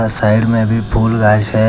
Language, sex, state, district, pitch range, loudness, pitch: Hindi, male, Jharkhand, Deoghar, 105-115 Hz, -13 LUFS, 110 Hz